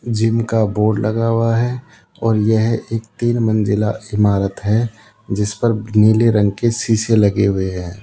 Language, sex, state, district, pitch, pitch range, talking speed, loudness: Hindi, male, Rajasthan, Jaipur, 110 Hz, 105-115 Hz, 155 wpm, -17 LUFS